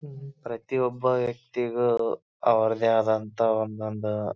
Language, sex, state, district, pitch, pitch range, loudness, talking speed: Kannada, male, Karnataka, Bijapur, 115 Hz, 110-125 Hz, -26 LUFS, 70 wpm